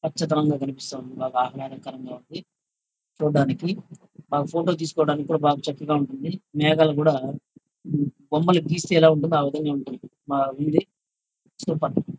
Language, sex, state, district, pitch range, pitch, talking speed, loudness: Telugu, male, Andhra Pradesh, Chittoor, 140-160 Hz, 150 Hz, 145 wpm, -23 LUFS